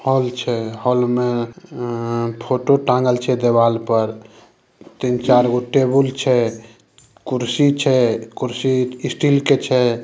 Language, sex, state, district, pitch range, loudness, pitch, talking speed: Maithili, male, Bihar, Samastipur, 115-130 Hz, -18 LUFS, 125 Hz, 115 wpm